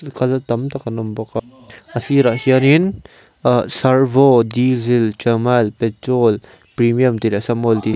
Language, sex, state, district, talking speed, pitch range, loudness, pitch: Mizo, male, Mizoram, Aizawl, 150 wpm, 115-130 Hz, -16 LUFS, 120 Hz